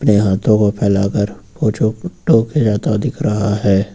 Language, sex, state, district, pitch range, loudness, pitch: Hindi, male, Uttar Pradesh, Lucknow, 100-115 Hz, -16 LUFS, 105 Hz